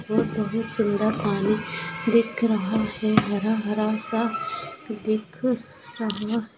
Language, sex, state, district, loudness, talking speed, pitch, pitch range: Hindi, female, Bihar, Lakhisarai, -25 LUFS, 110 wpm, 220 Hz, 210-230 Hz